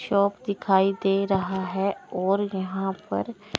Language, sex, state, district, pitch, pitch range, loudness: Hindi, male, Chandigarh, Chandigarh, 195 Hz, 190-200 Hz, -25 LUFS